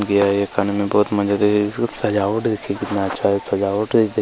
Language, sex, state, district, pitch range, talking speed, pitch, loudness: Hindi, male, Chhattisgarh, Kabirdham, 100-105 Hz, 255 wpm, 100 Hz, -19 LUFS